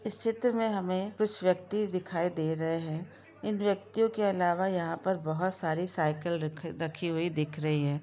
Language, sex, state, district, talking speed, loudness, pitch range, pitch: Hindi, female, Jharkhand, Jamtara, 170 wpm, -31 LUFS, 160-200 Hz, 180 Hz